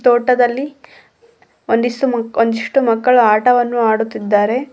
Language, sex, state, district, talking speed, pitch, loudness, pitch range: Kannada, female, Karnataka, Koppal, 100 wpm, 240 Hz, -15 LUFS, 225-255 Hz